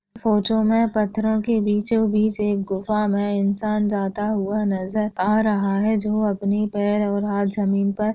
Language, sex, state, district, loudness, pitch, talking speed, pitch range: Hindi, female, Maharashtra, Sindhudurg, -21 LUFS, 210 Hz, 170 wpm, 200-215 Hz